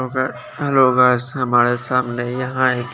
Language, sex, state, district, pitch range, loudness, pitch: Hindi, male, Chandigarh, Chandigarh, 120-130 Hz, -18 LUFS, 125 Hz